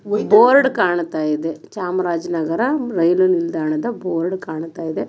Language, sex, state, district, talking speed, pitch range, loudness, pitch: Kannada, female, Karnataka, Chamarajanagar, 95 wpm, 165-205 Hz, -18 LUFS, 175 Hz